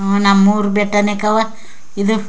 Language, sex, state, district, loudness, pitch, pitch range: Kannada, female, Karnataka, Chamarajanagar, -15 LUFS, 205 Hz, 200-215 Hz